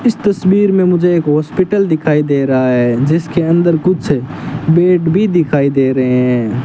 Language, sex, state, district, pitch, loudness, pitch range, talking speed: Hindi, male, Rajasthan, Bikaner, 160 Hz, -13 LUFS, 135-180 Hz, 170 wpm